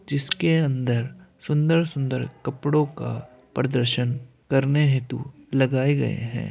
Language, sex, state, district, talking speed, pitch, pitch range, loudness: Hindi, male, Uttar Pradesh, Varanasi, 100 wpm, 135 Hz, 125-150 Hz, -24 LUFS